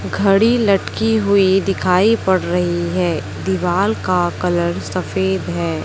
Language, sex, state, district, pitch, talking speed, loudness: Hindi, female, Chhattisgarh, Raipur, 175 Hz, 125 wpm, -17 LUFS